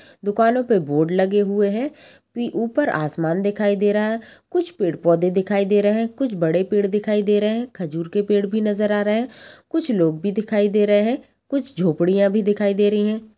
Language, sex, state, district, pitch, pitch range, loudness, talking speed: Hindi, female, Bihar, Sitamarhi, 205 Hz, 200-220 Hz, -20 LUFS, 220 wpm